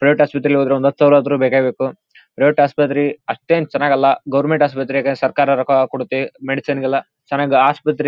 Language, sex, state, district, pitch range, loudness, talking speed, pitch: Kannada, male, Karnataka, Bellary, 135-145 Hz, -16 LUFS, 170 wpm, 140 Hz